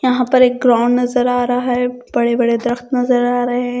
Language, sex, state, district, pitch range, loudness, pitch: Hindi, female, Punjab, Kapurthala, 245-250 Hz, -15 LUFS, 245 Hz